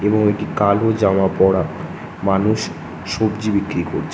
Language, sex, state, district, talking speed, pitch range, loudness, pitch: Bengali, male, West Bengal, North 24 Parganas, 130 wpm, 95-105 Hz, -18 LUFS, 100 Hz